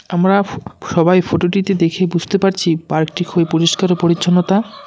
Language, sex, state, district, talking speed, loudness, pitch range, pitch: Bengali, male, West Bengal, Cooch Behar, 135 wpm, -15 LUFS, 170-195 Hz, 180 Hz